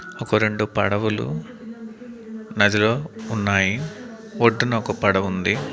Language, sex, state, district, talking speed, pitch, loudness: Telugu, male, Andhra Pradesh, Manyam, 95 wpm, 115 Hz, -21 LUFS